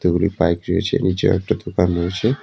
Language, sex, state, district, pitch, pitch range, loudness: Bengali, male, West Bengal, Cooch Behar, 90 Hz, 85-100 Hz, -19 LUFS